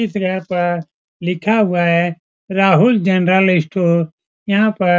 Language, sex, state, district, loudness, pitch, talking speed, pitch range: Hindi, male, Bihar, Supaul, -16 LUFS, 180 Hz, 145 wpm, 175-195 Hz